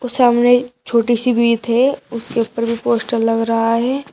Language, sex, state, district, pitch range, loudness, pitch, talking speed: Hindi, female, Uttar Pradesh, Shamli, 230-245 Hz, -16 LUFS, 235 Hz, 175 wpm